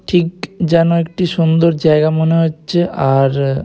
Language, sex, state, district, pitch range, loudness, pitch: Bengali, male, West Bengal, Purulia, 155-170 Hz, -14 LUFS, 165 Hz